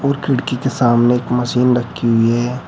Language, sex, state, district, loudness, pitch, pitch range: Hindi, male, Uttar Pradesh, Shamli, -16 LUFS, 125 Hz, 120-130 Hz